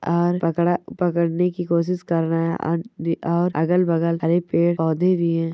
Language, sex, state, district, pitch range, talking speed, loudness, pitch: Hindi, male, West Bengal, Malda, 165-175 Hz, 175 wpm, -21 LUFS, 170 Hz